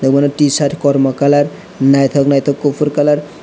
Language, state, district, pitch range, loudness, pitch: Kokborok, Tripura, West Tripura, 140-145 Hz, -13 LUFS, 145 Hz